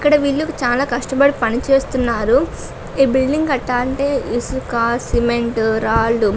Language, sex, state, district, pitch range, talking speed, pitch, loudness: Telugu, female, Andhra Pradesh, Srikakulam, 235-275 Hz, 120 wpm, 245 Hz, -17 LUFS